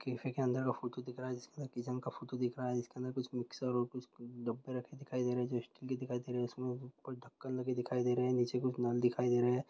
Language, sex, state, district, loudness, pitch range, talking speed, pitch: Hindi, male, Andhra Pradesh, Guntur, -38 LUFS, 120-130 Hz, 315 wpm, 125 Hz